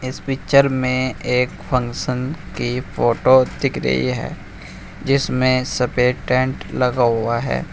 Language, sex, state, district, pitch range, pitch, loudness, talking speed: Hindi, male, Uttar Pradesh, Shamli, 120-130 Hz, 125 Hz, -19 LUFS, 125 wpm